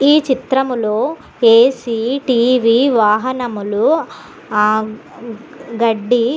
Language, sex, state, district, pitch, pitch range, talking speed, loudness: Telugu, female, Andhra Pradesh, Guntur, 235 Hz, 220-260 Hz, 105 wpm, -15 LUFS